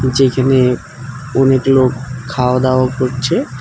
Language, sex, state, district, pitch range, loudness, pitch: Bengali, male, West Bengal, Alipurduar, 130-135 Hz, -14 LUFS, 130 Hz